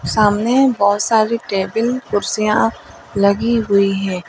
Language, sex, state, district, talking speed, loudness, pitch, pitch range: Hindi, female, Uttar Pradesh, Lalitpur, 110 wpm, -16 LUFS, 215 Hz, 200-230 Hz